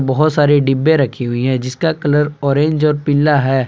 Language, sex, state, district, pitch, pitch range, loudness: Hindi, male, Jharkhand, Palamu, 145 Hz, 135-150 Hz, -14 LUFS